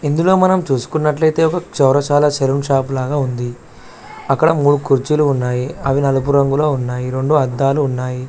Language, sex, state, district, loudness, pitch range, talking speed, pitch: Telugu, male, Telangana, Karimnagar, -16 LUFS, 130-150 Hz, 145 wpm, 140 Hz